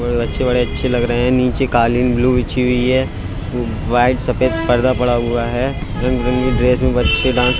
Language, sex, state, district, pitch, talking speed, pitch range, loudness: Hindi, male, Uttar Pradesh, Budaun, 125 Hz, 195 wpm, 120-125 Hz, -16 LUFS